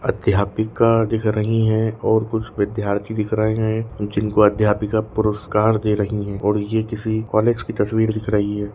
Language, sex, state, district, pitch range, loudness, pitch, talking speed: Hindi, male, Bihar, Darbhanga, 105-110 Hz, -20 LUFS, 110 Hz, 180 wpm